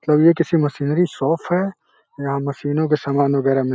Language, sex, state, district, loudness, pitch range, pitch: Hindi, male, Uttar Pradesh, Deoria, -19 LUFS, 140-165 Hz, 150 Hz